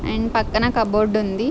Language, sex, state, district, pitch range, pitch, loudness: Telugu, female, Andhra Pradesh, Srikakulam, 215-230 Hz, 220 Hz, -20 LUFS